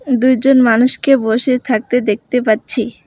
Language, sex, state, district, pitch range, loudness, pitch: Bengali, female, West Bengal, Alipurduar, 225-255 Hz, -13 LUFS, 250 Hz